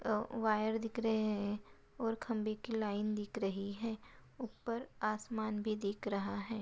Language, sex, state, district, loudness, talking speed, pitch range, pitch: Hindi, female, Chhattisgarh, Rajnandgaon, -38 LUFS, 165 wpm, 210-225 Hz, 215 Hz